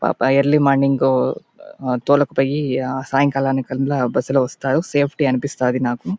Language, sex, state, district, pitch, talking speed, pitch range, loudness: Telugu, male, Andhra Pradesh, Anantapur, 135 Hz, 105 wpm, 130-145 Hz, -18 LUFS